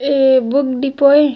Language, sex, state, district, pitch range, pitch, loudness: Chhattisgarhi, female, Chhattisgarh, Raigarh, 265-280 Hz, 275 Hz, -13 LUFS